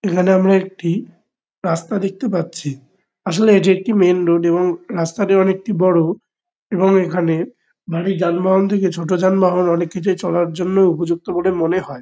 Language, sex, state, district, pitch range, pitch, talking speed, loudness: Bengali, male, West Bengal, Kolkata, 170-195 Hz, 185 Hz, 145 wpm, -17 LUFS